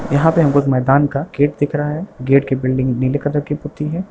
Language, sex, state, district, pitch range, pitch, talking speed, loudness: Hindi, male, Bihar, Lakhisarai, 135-150 Hz, 145 Hz, 265 wpm, -17 LUFS